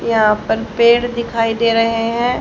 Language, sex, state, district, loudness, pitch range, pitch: Hindi, female, Haryana, Rohtak, -15 LUFS, 225-235 Hz, 230 Hz